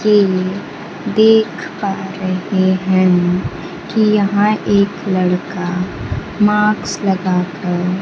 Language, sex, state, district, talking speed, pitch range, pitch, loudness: Hindi, male, Bihar, Kaimur, 95 wpm, 185-210 Hz, 190 Hz, -16 LUFS